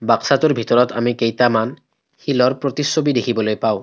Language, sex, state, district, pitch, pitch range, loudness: Assamese, male, Assam, Kamrup Metropolitan, 120 Hz, 115-140 Hz, -17 LUFS